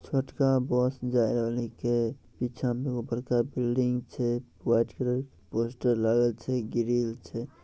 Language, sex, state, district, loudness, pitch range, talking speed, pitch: Maithili, male, Bihar, Samastipur, -29 LUFS, 120-125 Hz, 150 wpm, 120 Hz